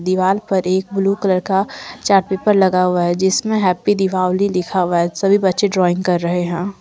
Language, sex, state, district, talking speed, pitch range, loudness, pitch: Hindi, female, Jharkhand, Ranchi, 205 wpm, 180-195 Hz, -16 LUFS, 190 Hz